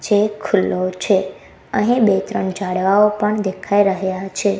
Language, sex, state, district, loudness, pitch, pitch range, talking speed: Gujarati, female, Gujarat, Gandhinagar, -18 LUFS, 195 Hz, 190-210 Hz, 145 wpm